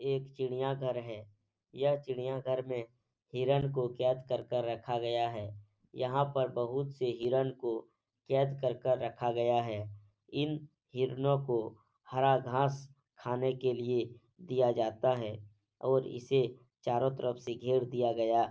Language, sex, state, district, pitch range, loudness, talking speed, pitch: Hindi, male, Bihar, Supaul, 120-130 Hz, -34 LUFS, 150 wpm, 125 Hz